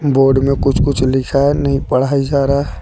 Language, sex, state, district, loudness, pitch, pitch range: Hindi, male, Jharkhand, Deoghar, -14 LUFS, 140 Hz, 135-140 Hz